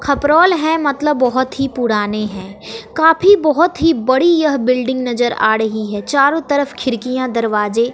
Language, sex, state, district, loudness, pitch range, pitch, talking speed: Hindi, female, Bihar, West Champaran, -15 LUFS, 230-300 Hz, 260 Hz, 165 wpm